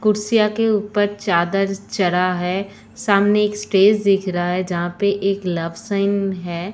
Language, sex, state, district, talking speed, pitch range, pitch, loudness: Hindi, female, Uttar Pradesh, Etah, 170 wpm, 180-210 Hz, 195 Hz, -19 LUFS